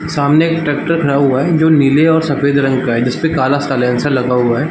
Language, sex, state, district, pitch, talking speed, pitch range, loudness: Hindi, male, Bihar, Darbhanga, 140 Hz, 240 wpm, 130-160 Hz, -13 LUFS